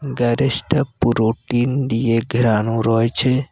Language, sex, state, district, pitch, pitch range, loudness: Bengali, male, West Bengal, Cooch Behar, 120 Hz, 115-130 Hz, -17 LUFS